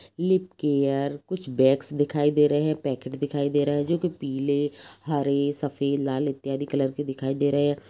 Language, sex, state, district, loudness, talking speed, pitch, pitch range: Hindi, female, Bihar, Jamui, -25 LUFS, 195 wpm, 145 Hz, 140-145 Hz